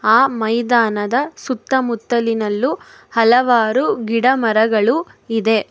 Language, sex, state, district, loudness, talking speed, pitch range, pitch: Kannada, female, Karnataka, Bangalore, -16 LUFS, 75 wpm, 225-255 Hz, 235 Hz